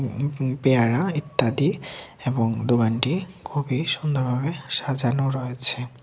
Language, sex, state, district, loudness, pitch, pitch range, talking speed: Bengali, male, Tripura, West Tripura, -24 LUFS, 130 Hz, 125-145 Hz, 100 wpm